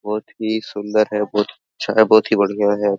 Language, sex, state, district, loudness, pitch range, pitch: Hindi, male, Bihar, Araria, -18 LUFS, 105-110 Hz, 105 Hz